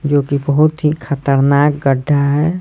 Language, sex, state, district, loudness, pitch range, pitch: Hindi, male, Bihar, Patna, -14 LUFS, 140-150 Hz, 145 Hz